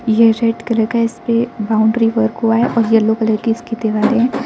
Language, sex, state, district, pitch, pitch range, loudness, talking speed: Hindi, female, Arunachal Pradesh, Lower Dibang Valley, 230 Hz, 220-235 Hz, -15 LUFS, 230 wpm